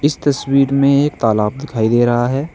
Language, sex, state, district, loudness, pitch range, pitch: Hindi, male, Uttar Pradesh, Saharanpur, -15 LUFS, 120-145 Hz, 135 Hz